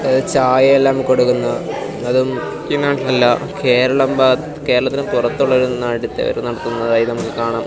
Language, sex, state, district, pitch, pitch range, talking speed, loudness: Malayalam, male, Kerala, Kasaragod, 130 Hz, 120-135 Hz, 115 wpm, -16 LUFS